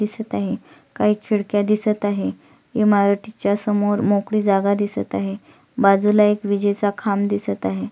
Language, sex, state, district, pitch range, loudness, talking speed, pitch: Marathi, female, Maharashtra, Solapur, 200-210 Hz, -20 LUFS, 135 wpm, 205 Hz